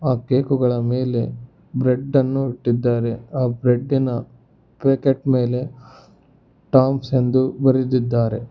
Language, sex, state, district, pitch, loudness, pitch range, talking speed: Kannada, male, Karnataka, Bangalore, 130 Hz, -20 LUFS, 120-135 Hz, 105 wpm